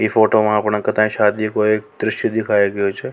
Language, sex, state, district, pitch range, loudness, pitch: Rajasthani, male, Rajasthan, Nagaur, 105-110 Hz, -17 LUFS, 105 Hz